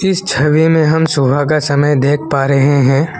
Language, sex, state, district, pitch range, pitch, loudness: Hindi, male, Assam, Kamrup Metropolitan, 140-160 Hz, 145 Hz, -12 LUFS